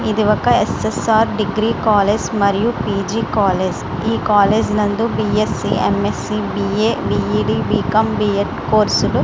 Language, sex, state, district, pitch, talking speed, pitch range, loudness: Telugu, female, Andhra Pradesh, Srikakulam, 210 Hz, 155 wpm, 200-220 Hz, -17 LUFS